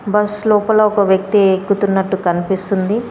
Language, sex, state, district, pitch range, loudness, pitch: Telugu, female, Telangana, Komaram Bheem, 190-210 Hz, -15 LUFS, 200 Hz